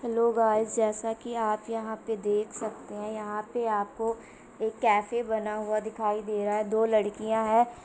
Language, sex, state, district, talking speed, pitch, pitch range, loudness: Hindi, female, Bihar, Begusarai, 185 wpm, 220 Hz, 215-225 Hz, -29 LUFS